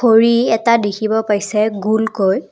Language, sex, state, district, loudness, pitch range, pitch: Assamese, female, Assam, Kamrup Metropolitan, -15 LUFS, 210-230 Hz, 220 Hz